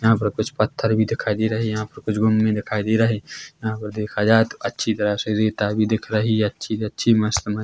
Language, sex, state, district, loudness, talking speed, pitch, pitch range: Hindi, male, Chhattisgarh, Korba, -21 LUFS, 265 wpm, 110 Hz, 105-110 Hz